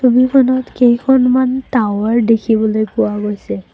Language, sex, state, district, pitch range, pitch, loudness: Assamese, female, Assam, Kamrup Metropolitan, 215-255 Hz, 235 Hz, -14 LUFS